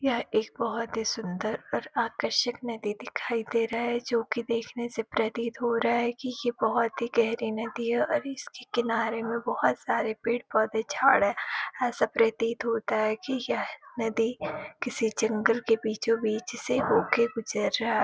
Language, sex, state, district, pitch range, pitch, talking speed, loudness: Hindi, female, Uttar Pradesh, Etah, 225-240 Hz, 230 Hz, 175 wpm, -28 LUFS